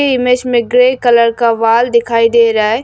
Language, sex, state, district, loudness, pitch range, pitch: Hindi, female, Arunachal Pradesh, Lower Dibang Valley, -11 LUFS, 230-250 Hz, 235 Hz